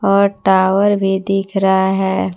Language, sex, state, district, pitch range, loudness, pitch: Hindi, female, Jharkhand, Palamu, 190-195 Hz, -15 LUFS, 195 Hz